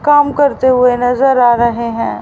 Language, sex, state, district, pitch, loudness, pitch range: Hindi, female, Haryana, Rohtak, 250 Hz, -12 LUFS, 235-270 Hz